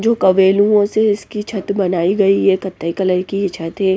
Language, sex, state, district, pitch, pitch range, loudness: Hindi, female, Bihar, West Champaran, 195 Hz, 190-205 Hz, -16 LUFS